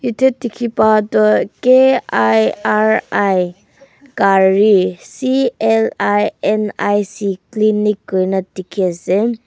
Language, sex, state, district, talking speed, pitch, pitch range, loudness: Nagamese, female, Nagaland, Kohima, 65 wpm, 210 Hz, 190-235 Hz, -15 LUFS